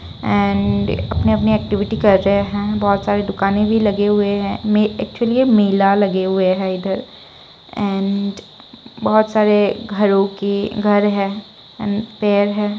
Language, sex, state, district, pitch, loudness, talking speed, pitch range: Hindi, female, Bihar, Saran, 205 Hz, -17 LUFS, 150 wpm, 195-210 Hz